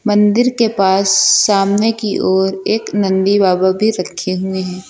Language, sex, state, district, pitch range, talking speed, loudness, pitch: Hindi, male, Uttar Pradesh, Lucknow, 190-210 Hz, 160 wpm, -14 LUFS, 195 Hz